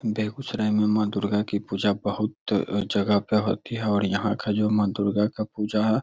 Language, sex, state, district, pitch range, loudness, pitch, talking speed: Hindi, male, Bihar, Begusarai, 100-110 Hz, -25 LUFS, 105 Hz, 200 wpm